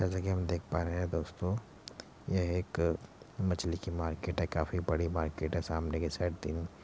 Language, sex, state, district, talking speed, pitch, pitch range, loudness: Hindi, male, Uttar Pradesh, Muzaffarnagar, 200 wpm, 85 Hz, 80-90 Hz, -35 LUFS